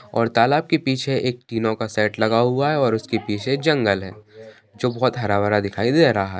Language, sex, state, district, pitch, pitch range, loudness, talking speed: Hindi, male, Bihar, Bhagalpur, 115 Hz, 105-130 Hz, -20 LUFS, 215 wpm